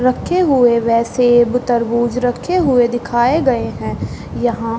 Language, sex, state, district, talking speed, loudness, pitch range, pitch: Hindi, female, Bihar, East Champaran, 150 wpm, -15 LUFS, 235-250 Hz, 240 Hz